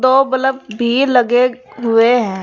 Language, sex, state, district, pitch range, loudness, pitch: Hindi, female, Uttar Pradesh, Saharanpur, 235-260 Hz, -14 LUFS, 250 Hz